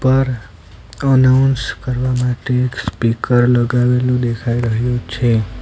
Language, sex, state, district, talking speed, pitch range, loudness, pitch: Gujarati, male, Gujarat, Valsad, 105 wpm, 115-125 Hz, -16 LUFS, 125 Hz